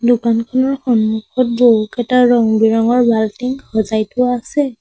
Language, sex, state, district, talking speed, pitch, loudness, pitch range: Assamese, female, Assam, Sonitpur, 110 wpm, 235 Hz, -15 LUFS, 220-250 Hz